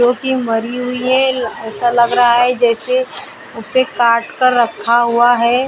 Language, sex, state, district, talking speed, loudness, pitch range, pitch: Hindi, female, Maharashtra, Mumbai Suburban, 170 wpm, -14 LUFS, 235-255 Hz, 245 Hz